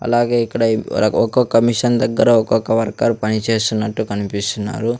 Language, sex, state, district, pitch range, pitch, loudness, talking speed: Telugu, male, Andhra Pradesh, Sri Satya Sai, 110-120 Hz, 115 Hz, -17 LUFS, 145 wpm